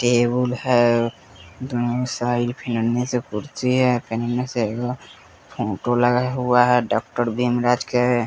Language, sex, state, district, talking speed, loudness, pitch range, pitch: Hindi, male, Bihar, West Champaran, 110 wpm, -21 LUFS, 120-125 Hz, 120 Hz